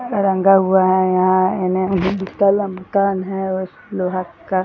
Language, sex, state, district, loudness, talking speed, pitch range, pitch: Hindi, female, Bihar, Jahanabad, -17 LUFS, 165 wpm, 185-195 Hz, 190 Hz